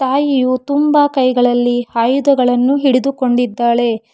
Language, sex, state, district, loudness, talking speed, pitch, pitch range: Kannada, female, Karnataka, Bangalore, -14 LUFS, 70 wpm, 255 Hz, 245-275 Hz